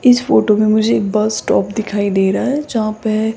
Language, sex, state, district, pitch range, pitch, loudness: Hindi, female, Rajasthan, Jaipur, 210-225 Hz, 215 Hz, -15 LUFS